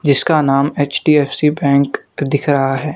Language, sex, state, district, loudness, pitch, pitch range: Hindi, male, Maharashtra, Gondia, -15 LUFS, 145 Hz, 140-150 Hz